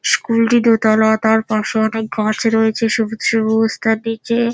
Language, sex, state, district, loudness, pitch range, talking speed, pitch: Bengali, female, West Bengal, Dakshin Dinajpur, -16 LUFS, 220-230 Hz, 170 wpm, 225 Hz